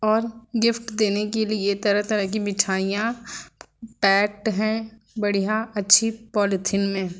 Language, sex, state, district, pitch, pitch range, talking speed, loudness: Hindi, female, Uttar Pradesh, Lucknow, 210 Hz, 200-225 Hz, 115 wpm, -22 LUFS